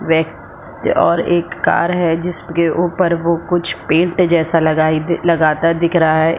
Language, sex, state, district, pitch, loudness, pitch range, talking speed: Hindi, female, Jharkhand, Sahebganj, 170 Hz, -15 LUFS, 160-175 Hz, 140 wpm